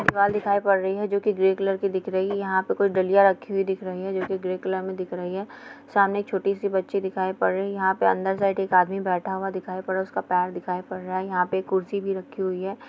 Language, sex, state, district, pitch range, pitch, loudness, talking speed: Hindi, female, Bihar, East Champaran, 185-195 Hz, 190 Hz, -25 LUFS, 310 wpm